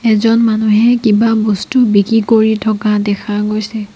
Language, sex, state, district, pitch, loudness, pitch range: Assamese, female, Assam, Sonitpur, 220 Hz, -12 LUFS, 210-225 Hz